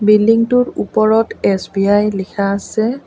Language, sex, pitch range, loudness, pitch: Assamese, female, 200-225 Hz, -15 LUFS, 210 Hz